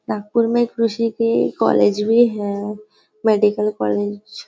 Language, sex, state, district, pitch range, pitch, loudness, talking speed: Hindi, female, Maharashtra, Nagpur, 205-230 Hz, 215 Hz, -18 LUFS, 135 wpm